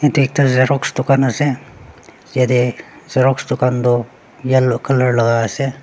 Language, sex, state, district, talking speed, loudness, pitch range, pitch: Nagamese, male, Nagaland, Dimapur, 135 wpm, -16 LUFS, 125-135 Hz, 130 Hz